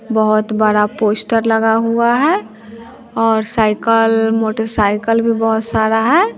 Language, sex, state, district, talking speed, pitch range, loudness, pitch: Hindi, female, Bihar, West Champaran, 120 wpm, 220-230 Hz, -14 LUFS, 225 Hz